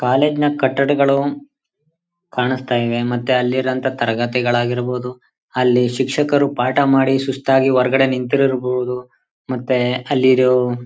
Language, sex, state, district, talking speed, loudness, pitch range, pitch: Kannada, male, Karnataka, Chamarajanagar, 115 wpm, -17 LUFS, 125-140 Hz, 130 Hz